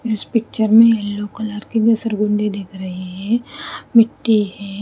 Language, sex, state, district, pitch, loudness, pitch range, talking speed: Hindi, female, Haryana, Rohtak, 215 Hz, -17 LUFS, 205-230 Hz, 160 wpm